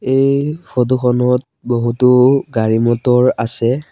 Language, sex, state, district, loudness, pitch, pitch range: Assamese, male, Assam, Sonitpur, -14 LUFS, 125 Hz, 120-135 Hz